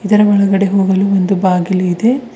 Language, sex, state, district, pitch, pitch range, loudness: Kannada, female, Karnataka, Bidar, 195 Hz, 190-205 Hz, -13 LUFS